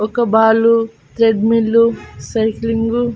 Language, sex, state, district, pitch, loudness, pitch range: Telugu, female, Andhra Pradesh, Annamaya, 225 Hz, -14 LUFS, 220-230 Hz